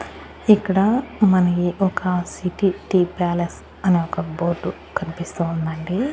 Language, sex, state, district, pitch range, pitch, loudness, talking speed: Telugu, female, Andhra Pradesh, Annamaya, 170-195 Hz, 180 Hz, -21 LUFS, 110 wpm